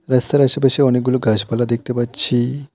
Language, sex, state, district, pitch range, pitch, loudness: Bengali, male, West Bengal, Alipurduar, 120-140 Hz, 125 Hz, -16 LUFS